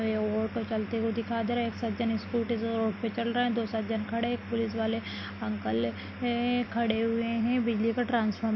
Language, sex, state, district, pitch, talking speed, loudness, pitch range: Hindi, female, Rajasthan, Nagaur, 230 Hz, 210 wpm, -30 LUFS, 220-235 Hz